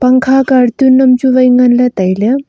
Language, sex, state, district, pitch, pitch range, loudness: Wancho, female, Arunachal Pradesh, Longding, 255 Hz, 245-260 Hz, -9 LUFS